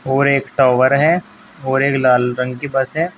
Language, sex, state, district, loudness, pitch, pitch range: Hindi, male, Uttar Pradesh, Saharanpur, -15 LUFS, 135 Hz, 130-150 Hz